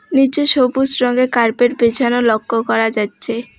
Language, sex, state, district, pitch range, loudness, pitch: Bengali, female, West Bengal, Alipurduar, 230-265 Hz, -15 LUFS, 245 Hz